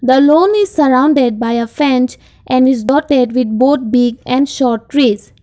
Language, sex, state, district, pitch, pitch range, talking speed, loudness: English, female, Assam, Kamrup Metropolitan, 255 Hz, 245-285 Hz, 165 wpm, -12 LUFS